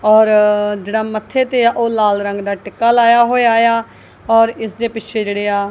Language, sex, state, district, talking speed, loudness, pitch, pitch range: Punjabi, female, Punjab, Kapurthala, 190 wpm, -14 LUFS, 220 Hz, 205-235 Hz